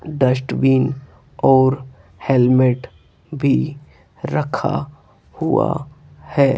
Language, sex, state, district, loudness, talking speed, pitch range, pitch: Hindi, male, Rajasthan, Jaipur, -18 LUFS, 65 wpm, 130-140 Hz, 130 Hz